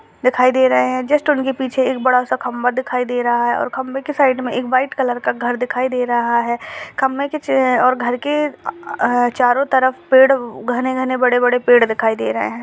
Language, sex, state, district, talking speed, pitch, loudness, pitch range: Hindi, female, Bihar, Jamui, 215 wpm, 255 Hz, -17 LUFS, 245-260 Hz